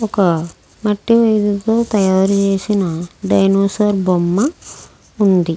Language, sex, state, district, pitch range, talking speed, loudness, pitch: Telugu, female, Andhra Pradesh, Krishna, 185-210 Hz, 95 wpm, -15 LUFS, 200 Hz